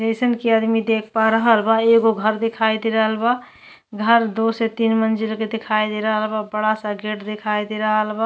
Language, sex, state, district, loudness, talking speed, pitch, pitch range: Bhojpuri, female, Uttar Pradesh, Deoria, -19 LUFS, 220 wpm, 220 Hz, 215-225 Hz